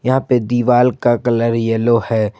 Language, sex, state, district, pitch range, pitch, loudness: Hindi, male, Jharkhand, Garhwa, 115-125 Hz, 120 Hz, -15 LUFS